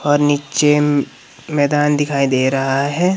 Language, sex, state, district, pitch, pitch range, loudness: Hindi, male, Himachal Pradesh, Shimla, 145 Hz, 140-150 Hz, -16 LUFS